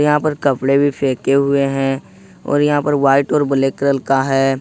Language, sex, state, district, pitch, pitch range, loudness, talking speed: Hindi, male, Jharkhand, Ranchi, 135 Hz, 135-145 Hz, -16 LUFS, 210 wpm